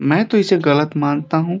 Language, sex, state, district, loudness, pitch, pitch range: Hindi, male, Uttar Pradesh, Deoria, -16 LUFS, 160 Hz, 145-185 Hz